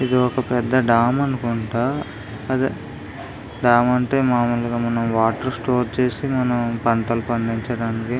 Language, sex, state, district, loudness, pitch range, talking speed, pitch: Telugu, male, Andhra Pradesh, Visakhapatnam, -20 LUFS, 115-130 Hz, 115 wpm, 120 Hz